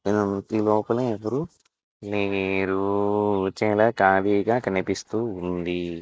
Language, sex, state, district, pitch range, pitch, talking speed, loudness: Telugu, male, Andhra Pradesh, Visakhapatnam, 95-110 Hz, 100 Hz, 70 wpm, -24 LUFS